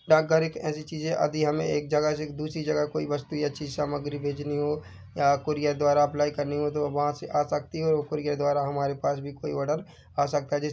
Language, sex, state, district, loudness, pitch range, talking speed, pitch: Hindi, male, Chhattisgarh, Bilaspur, -27 LUFS, 145-155 Hz, 245 wpm, 150 Hz